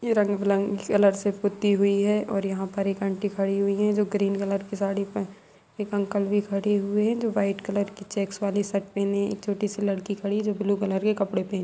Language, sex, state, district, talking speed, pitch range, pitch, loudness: Hindi, female, Bihar, Sitamarhi, 245 wpm, 200-205 Hz, 200 Hz, -26 LUFS